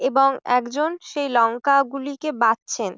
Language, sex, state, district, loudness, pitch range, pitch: Bengali, female, West Bengal, Jhargram, -21 LUFS, 245-285 Hz, 275 Hz